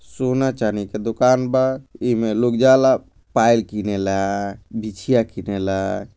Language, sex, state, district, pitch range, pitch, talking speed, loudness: Bhojpuri, male, Bihar, Gopalganj, 100-125 Hz, 115 Hz, 115 wpm, -19 LUFS